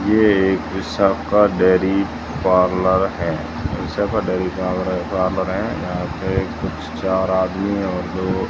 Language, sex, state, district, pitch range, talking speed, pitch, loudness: Hindi, male, Rajasthan, Jaisalmer, 90-95 Hz, 125 wpm, 95 Hz, -19 LUFS